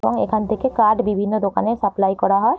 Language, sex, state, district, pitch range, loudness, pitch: Bengali, female, West Bengal, Jhargram, 200-220 Hz, -19 LUFS, 215 Hz